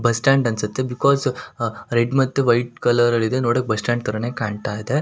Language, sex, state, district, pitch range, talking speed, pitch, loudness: Kannada, male, Karnataka, Shimoga, 115-130 Hz, 180 wpm, 120 Hz, -20 LUFS